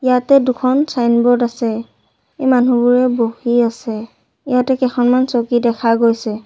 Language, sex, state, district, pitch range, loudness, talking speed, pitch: Assamese, female, Assam, Sonitpur, 230-255 Hz, -15 LUFS, 120 wpm, 245 Hz